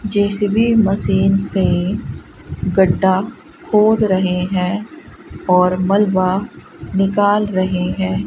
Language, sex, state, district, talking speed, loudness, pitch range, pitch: Hindi, female, Rajasthan, Bikaner, 85 wpm, -16 LUFS, 185-205 Hz, 195 Hz